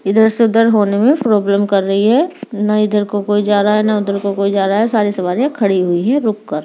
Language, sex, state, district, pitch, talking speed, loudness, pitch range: Hindi, female, Delhi, New Delhi, 210 Hz, 270 wpm, -14 LUFS, 200-220 Hz